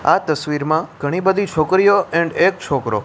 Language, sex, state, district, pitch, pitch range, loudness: Gujarati, male, Gujarat, Gandhinagar, 165 Hz, 150-190 Hz, -17 LUFS